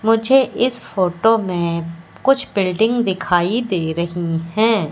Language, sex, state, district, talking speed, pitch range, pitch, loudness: Hindi, female, Madhya Pradesh, Katni, 120 wpm, 170-225 Hz, 190 Hz, -18 LUFS